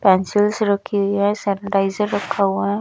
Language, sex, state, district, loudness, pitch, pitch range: Hindi, female, Bihar, West Champaran, -19 LUFS, 200 Hz, 195-205 Hz